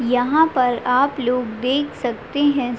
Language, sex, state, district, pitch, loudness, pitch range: Hindi, female, Bihar, Madhepura, 250 Hz, -19 LUFS, 245-285 Hz